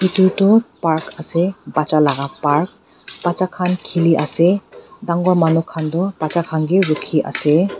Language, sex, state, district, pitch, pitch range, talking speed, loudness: Nagamese, female, Nagaland, Dimapur, 170 Hz, 155-185 Hz, 155 wpm, -17 LUFS